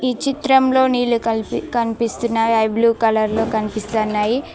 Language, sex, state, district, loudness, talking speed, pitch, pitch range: Telugu, female, Telangana, Mahabubabad, -18 LUFS, 120 wpm, 230 Hz, 220-250 Hz